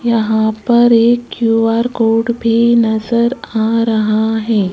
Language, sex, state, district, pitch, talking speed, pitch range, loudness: Hindi, female, Rajasthan, Jaipur, 230 Hz, 100 wpm, 220-235 Hz, -13 LUFS